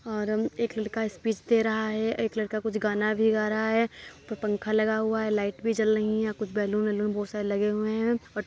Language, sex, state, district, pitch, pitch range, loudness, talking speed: Hindi, male, Uttar Pradesh, Muzaffarnagar, 215 Hz, 210-220 Hz, -27 LUFS, 260 wpm